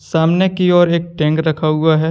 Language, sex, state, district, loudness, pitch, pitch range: Hindi, male, Jharkhand, Deoghar, -14 LUFS, 160 Hz, 155-175 Hz